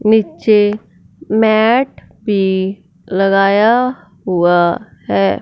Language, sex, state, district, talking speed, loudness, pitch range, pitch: Hindi, female, Punjab, Fazilka, 65 wpm, -14 LUFS, 180-215 Hz, 195 Hz